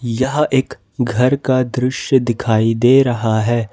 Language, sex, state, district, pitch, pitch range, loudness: Hindi, male, Jharkhand, Ranchi, 125 Hz, 115-130 Hz, -16 LUFS